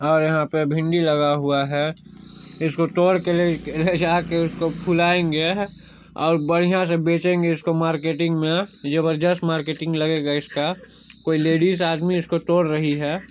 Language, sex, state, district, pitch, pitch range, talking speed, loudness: Hindi, male, Chhattisgarh, Sarguja, 165 Hz, 155-175 Hz, 155 wpm, -21 LUFS